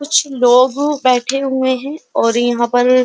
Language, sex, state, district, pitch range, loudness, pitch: Hindi, female, Uttar Pradesh, Jyotiba Phule Nagar, 245-280 Hz, -14 LUFS, 255 Hz